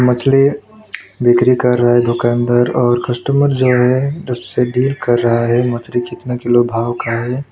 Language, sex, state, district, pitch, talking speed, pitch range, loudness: Hindi, male, West Bengal, Alipurduar, 125 Hz, 170 wpm, 120-130 Hz, -14 LUFS